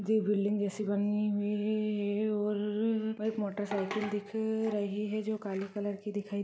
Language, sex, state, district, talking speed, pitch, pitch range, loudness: Hindi, female, Rajasthan, Churu, 160 wpm, 210 Hz, 205-215 Hz, -33 LUFS